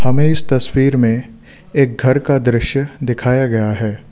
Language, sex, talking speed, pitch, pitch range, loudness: Hindi, male, 160 wpm, 130 Hz, 115-135 Hz, -15 LUFS